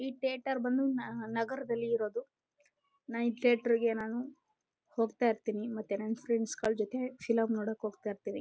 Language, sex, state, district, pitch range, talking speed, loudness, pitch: Kannada, female, Karnataka, Chamarajanagar, 220-260 Hz, 120 wpm, -34 LUFS, 235 Hz